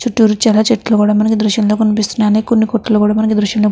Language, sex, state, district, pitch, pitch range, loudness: Telugu, female, Andhra Pradesh, Krishna, 215 Hz, 210-220 Hz, -13 LUFS